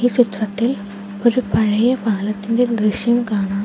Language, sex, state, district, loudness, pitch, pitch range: Malayalam, female, Kerala, Kollam, -18 LUFS, 220 Hz, 205-245 Hz